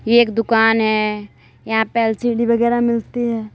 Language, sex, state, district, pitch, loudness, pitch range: Hindi, female, Uttar Pradesh, Lalitpur, 225 Hz, -17 LUFS, 220-235 Hz